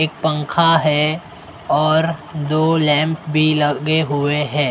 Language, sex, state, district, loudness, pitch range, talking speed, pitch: Hindi, male, Maharashtra, Mumbai Suburban, -17 LUFS, 150-160 Hz, 125 wpm, 155 Hz